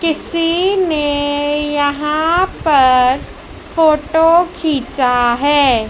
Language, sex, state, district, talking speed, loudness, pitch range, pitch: Hindi, female, Madhya Pradesh, Dhar, 70 wpm, -14 LUFS, 280-325 Hz, 295 Hz